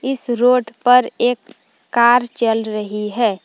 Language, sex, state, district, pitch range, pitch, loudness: Hindi, female, Jharkhand, Palamu, 225-250 Hz, 240 Hz, -16 LUFS